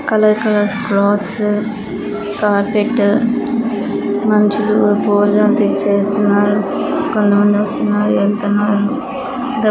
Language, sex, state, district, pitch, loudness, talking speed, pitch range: Telugu, female, Andhra Pradesh, Krishna, 210 Hz, -15 LUFS, 60 wpm, 205-220 Hz